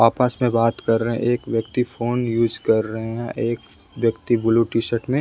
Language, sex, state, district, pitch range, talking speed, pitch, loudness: Hindi, male, Bihar, West Champaran, 115-120 Hz, 205 wpm, 115 Hz, -21 LUFS